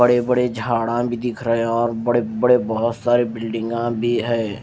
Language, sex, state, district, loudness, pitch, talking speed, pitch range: Hindi, male, Maharashtra, Mumbai Suburban, -20 LUFS, 120 Hz, 195 wpm, 115-120 Hz